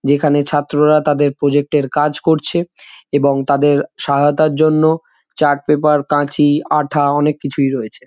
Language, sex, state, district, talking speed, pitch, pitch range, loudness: Bengali, male, West Bengal, Jhargram, 135 wpm, 145 Hz, 145-150 Hz, -15 LUFS